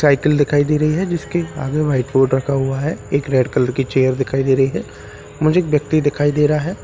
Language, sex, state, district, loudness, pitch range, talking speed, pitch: Hindi, male, Bihar, Katihar, -17 LUFS, 135-155 Hz, 235 wpm, 145 Hz